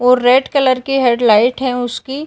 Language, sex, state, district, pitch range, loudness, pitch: Hindi, female, Uttar Pradesh, Gorakhpur, 245-265 Hz, -13 LUFS, 255 Hz